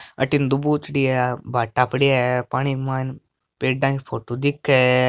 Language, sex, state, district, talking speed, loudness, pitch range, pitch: Marwari, male, Rajasthan, Nagaur, 165 wpm, -21 LUFS, 125-140 Hz, 130 Hz